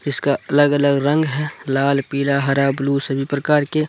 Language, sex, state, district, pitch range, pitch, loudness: Hindi, male, Jharkhand, Deoghar, 140-145 Hz, 140 Hz, -18 LUFS